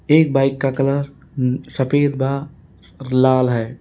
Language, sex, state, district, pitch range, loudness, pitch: Hindi, male, Uttar Pradesh, Lalitpur, 130-140 Hz, -18 LUFS, 135 Hz